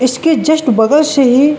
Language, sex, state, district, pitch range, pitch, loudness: Hindi, male, Uttarakhand, Uttarkashi, 255-305 Hz, 285 Hz, -11 LUFS